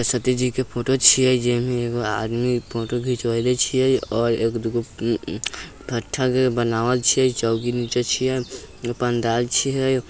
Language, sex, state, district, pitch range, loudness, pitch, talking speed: Hindi, male, Bihar, Vaishali, 115-130 Hz, -21 LUFS, 120 Hz, 90 wpm